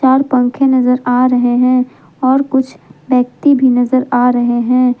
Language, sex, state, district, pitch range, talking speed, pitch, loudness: Hindi, female, Jharkhand, Palamu, 245-260 Hz, 165 wpm, 255 Hz, -12 LUFS